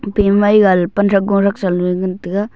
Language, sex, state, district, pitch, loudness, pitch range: Wancho, male, Arunachal Pradesh, Longding, 200 Hz, -14 LUFS, 185-205 Hz